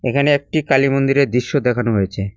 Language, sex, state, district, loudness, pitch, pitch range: Bengali, male, West Bengal, Cooch Behar, -17 LUFS, 135 Hz, 120-140 Hz